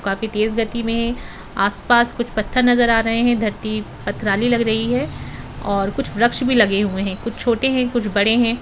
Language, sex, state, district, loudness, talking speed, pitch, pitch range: Hindi, female, Jharkhand, Jamtara, -19 LUFS, 200 wpm, 230 Hz, 210-240 Hz